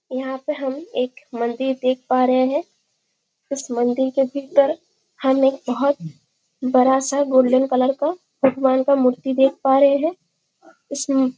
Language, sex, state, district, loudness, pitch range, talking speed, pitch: Hindi, female, Chhattisgarh, Bastar, -19 LUFS, 255-280 Hz, 155 wpm, 265 Hz